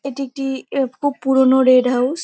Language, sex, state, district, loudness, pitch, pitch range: Bengali, female, West Bengal, North 24 Parganas, -17 LUFS, 265 Hz, 255-275 Hz